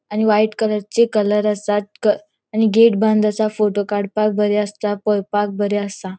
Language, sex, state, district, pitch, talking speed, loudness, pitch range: Konkani, female, Goa, North and South Goa, 210 Hz, 165 wpm, -18 LUFS, 205-215 Hz